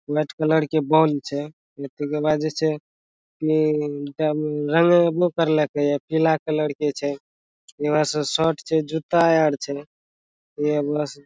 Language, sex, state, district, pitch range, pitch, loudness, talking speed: Maithili, male, Bihar, Madhepura, 145-155 Hz, 150 Hz, -22 LUFS, 160 wpm